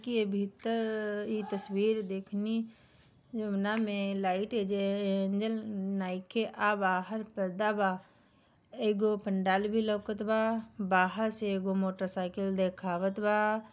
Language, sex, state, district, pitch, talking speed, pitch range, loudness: Bhojpuri, female, Bihar, Gopalganj, 205 Hz, 105 wpm, 195-220 Hz, -32 LUFS